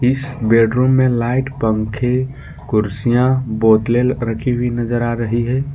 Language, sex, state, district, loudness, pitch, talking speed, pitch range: Hindi, male, Jharkhand, Ranchi, -17 LUFS, 120 Hz, 135 wpm, 115-130 Hz